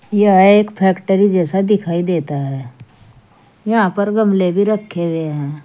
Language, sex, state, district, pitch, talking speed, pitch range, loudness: Hindi, female, Uttar Pradesh, Saharanpur, 185 Hz, 150 wpm, 150-205 Hz, -15 LUFS